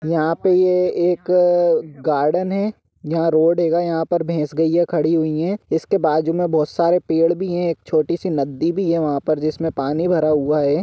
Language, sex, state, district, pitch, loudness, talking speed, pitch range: Hindi, male, Jharkhand, Sahebganj, 165 Hz, -19 LUFS, 190 wpm, 155-175 Hz